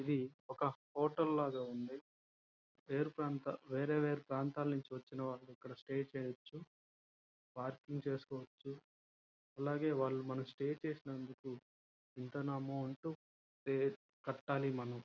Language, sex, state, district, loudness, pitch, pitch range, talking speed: Telugu, male, Andhra Pradesh, Krishna, -42 LUFS, 135 Hz, 130-145 Hz, 50 wpm